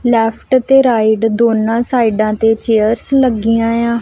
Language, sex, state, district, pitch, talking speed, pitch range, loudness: Punjabi, female, Punjab, Kapurthala, 230 Hz, 135 wpm, 220-240 Hz, -13 LUFS